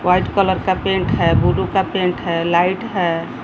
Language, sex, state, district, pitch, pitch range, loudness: Hindi, female, Jharkhand, Palamu, 180 Hz, 170-190 Hz, -17 LUFS